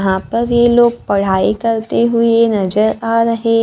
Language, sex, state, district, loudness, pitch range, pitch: Hindi, female, Maharashtra, Gondia, -14 LUFS, 210-230 Hz, 230 Hz